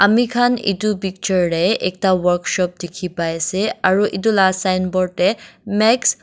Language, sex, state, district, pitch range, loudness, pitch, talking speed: Nagamese, female, Nagaland, Dimapur, 180-210 Hz, -18 LUFS, 190 Hz, 125 wpm